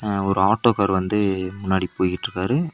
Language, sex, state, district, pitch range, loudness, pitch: Tamil, male, Tamil Nadu, Nilgiris, 95-105 Hz, -21 LUFS, 95 Hz